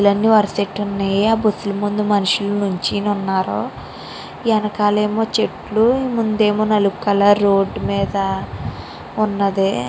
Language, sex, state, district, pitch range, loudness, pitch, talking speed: Telugu, female, Andhra Pradesh, Srikakulam, 200-215 Hz, -18 LUFS, 205 Hz, 145 wpm